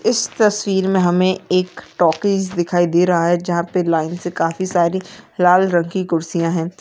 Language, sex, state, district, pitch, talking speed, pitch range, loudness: Hindi, female, Chhattisgarh, Raigarh, 175 Hz, 185 wpm, 170-185 Hz, -17 LUFS